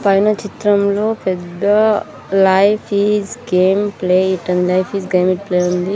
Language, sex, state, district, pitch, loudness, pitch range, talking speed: Telugu, female, Andhra Pradesh, Sri Satya Sai, 195 Hz, -15 LUFS, 185-205 Hz, 160 wpm